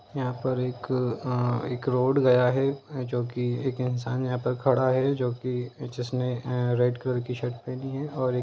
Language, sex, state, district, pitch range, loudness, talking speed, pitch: Hindi, male, Bihar, Gopalganj, 125-130 Hz, -27 LUFS, 200 wpm, 125 Hz